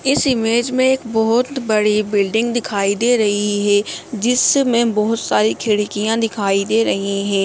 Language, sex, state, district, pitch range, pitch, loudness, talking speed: Hindi, male, Bihar, Muzaffarpur, 205-240 Hz, 220 Hz, -17 LUFS, 155 wpm